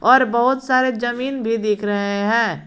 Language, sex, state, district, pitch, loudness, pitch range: Hindi, male, Jharkhand, Garhwa, 235 Hz, -19 LUFS, 210-255 Hz